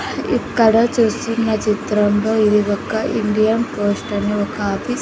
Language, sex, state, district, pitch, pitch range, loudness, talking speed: Telugu, female, Andhra Pradesh, Sri Satya Sai, 215 Hz, 205-225 Hz, -17 LUFS, 130 wpm